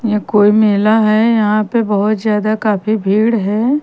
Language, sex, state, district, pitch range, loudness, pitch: Hindi, female, Haryana, Rohtak, 210-220 Hz, -13 LUFS, 215 Hz